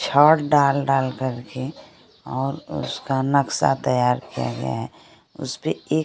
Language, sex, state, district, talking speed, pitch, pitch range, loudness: Hindi, female, Bihar, Kaimur, 130 wpm, 135 Hz, 130-145 Hz, -22 LUFS